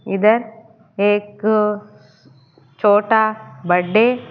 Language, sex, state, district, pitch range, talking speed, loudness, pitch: Hindi, female, Haryana, Charkhi Dadri, 195-220 Hz, 70 wpm, -17 LUFS, 210 Hz